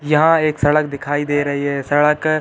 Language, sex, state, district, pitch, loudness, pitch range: Hindi, male, Uttar Pradesh, Hamirpur, 145 Hz, -17 LUFS, 145-155 Hz